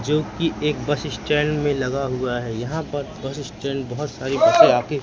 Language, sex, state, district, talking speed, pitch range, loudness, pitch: Hindi, male, Madhya Pradesh, Katni, 205 wpm, 130-150 Hz, -21 LUFS, 145 Hz